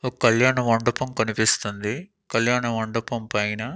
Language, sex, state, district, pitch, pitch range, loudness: Telugu, male, Andhra Pradesh, Annamaya, 115 Hz, 110-125 Hz, -23 LUFS